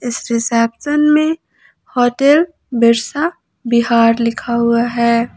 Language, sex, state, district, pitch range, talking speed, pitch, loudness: Hindi, female, Jharkhand, Ranchi, 235-295 Hz, 100 wpm, 235 Hz, -15 LUFS